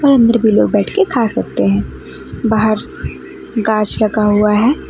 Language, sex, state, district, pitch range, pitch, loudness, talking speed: Hindi, female, West Bengal, Alipurduar, 205-230 Hz, 215 Hz, -14 LUFS, 160 wpm